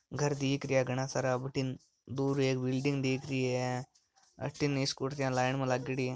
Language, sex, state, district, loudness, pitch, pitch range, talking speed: Marwari, male, Rajasthan, Nagaur, -33 LUFS, 130 Hz, 130-135 Hz, 185 wpm